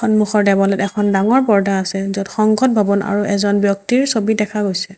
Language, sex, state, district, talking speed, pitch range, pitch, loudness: Assamese, female, Assam, Sonitpur, 180 wpm, 195-215 Hz, 205 Hz, -16 LUFS